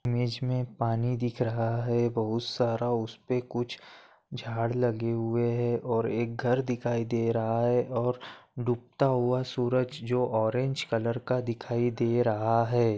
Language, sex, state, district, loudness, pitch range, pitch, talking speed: Hindi, male, Maharashtra, Nagpur, -29 LUFS, 115-125 Hz, 120 Hz, 150 wpm